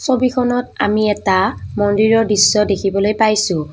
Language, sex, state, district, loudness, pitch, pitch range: Assamese, female, Assam, Kamrup Metropolitan, -15 LUFS, 210 Hz, 200-225 Hz